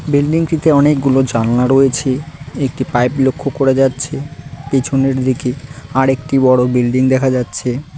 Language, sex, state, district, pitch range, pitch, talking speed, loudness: Bengali, male, West Bengal, Cooch Behar, 130-140 Hz, 135 Hz, 130 wpm, -14 LUFS